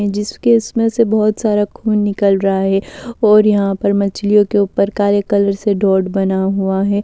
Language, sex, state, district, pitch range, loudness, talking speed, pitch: Hindi, female, Delhi, New Delhi, 195-215 Hz, -15 LUFS, 190 wpm, 205 Hz